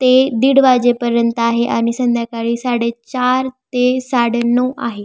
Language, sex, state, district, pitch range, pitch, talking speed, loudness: Marathi, female, Maharashtra, Pune, 235-255 Hz, 245 Hz, 145 wpm, -15 LUFS